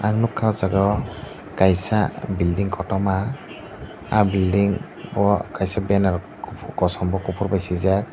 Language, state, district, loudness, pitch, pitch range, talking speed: Kokborok, Tripura, Dhalai, -21 LUFS, 95 Hz, 95-105 Hz, 135 wpm